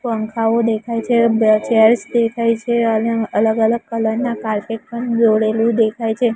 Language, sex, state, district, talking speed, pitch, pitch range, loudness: Gujarati, female, Gujarat, Gandhinagar, 160 wpm, 225 Hz, 220-235 Hz, -17 LUFS